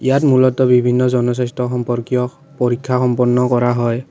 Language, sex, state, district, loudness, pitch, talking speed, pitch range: Assamese, male, Assam, Kamrup Metropolitan, -16 LUFS, 125 Hz, 130 wpm, 125-130 Hz